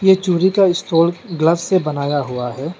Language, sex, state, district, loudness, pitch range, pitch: Hindi, male, Arunachal Pradesh, Lower Dibang Valley, -17 LUFS, 150-185 Hz, 170 Hz